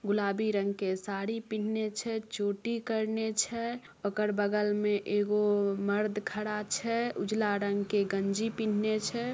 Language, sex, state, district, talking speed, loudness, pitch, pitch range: Maithili, female, Bihar, Samastipur, 135 wpm, -31 LUFS, 210 Hz, 205-220 Hz